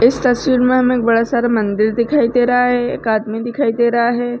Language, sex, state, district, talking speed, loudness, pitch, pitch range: Hindi, female, Uttar Pradesh, Varanasi, 245 wpm, -15 LUFS, 240 Hz, 230-245 Hz